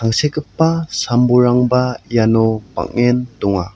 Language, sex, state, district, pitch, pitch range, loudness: Garo, male, Meghalaya, South Garo Hills, 120 Hz, 115-125 Hz, -16 LUFS